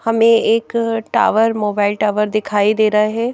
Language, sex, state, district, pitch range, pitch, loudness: Hindi, female, Madhya Pradesh, Bhopal, 210-225 Hz, 220 Hz, -15 LUFS